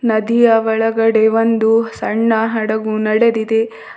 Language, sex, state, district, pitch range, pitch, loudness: Kannada, female, Karnataka, Bidar, 220-225 Hz, 225 Hz, -15 LUFS